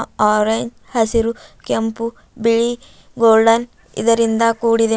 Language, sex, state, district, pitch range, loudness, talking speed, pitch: Kannada, female, Karnataka, Bidar, 225-230 Hz, -17 LUFS, 85 wpm, 230 Hz